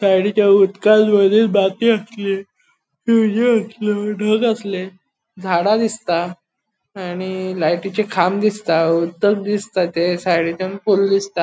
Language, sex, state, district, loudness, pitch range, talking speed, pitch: Konkani, male, Goa, North and South Goa, -17 LUFS, 185-215 Hz, 95 wpm, 200 Hz